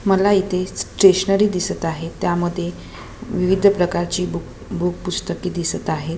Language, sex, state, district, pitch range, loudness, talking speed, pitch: Marathi, female, Maharashtra, Chandrapur, 175-195 Hz, -20 LUFS, 125 wpm, 180 Hz